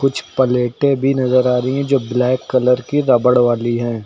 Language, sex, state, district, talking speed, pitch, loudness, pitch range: Hindi, male, Uttar Pradesh, Lucknow, 205 wpm, 125 Hz, -16 LUFS, 125-135 Hz